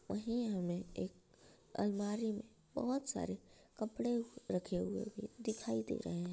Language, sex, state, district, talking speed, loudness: Hindi, female, Bihar, Darbhanga, 140 wpm, -41 LUFS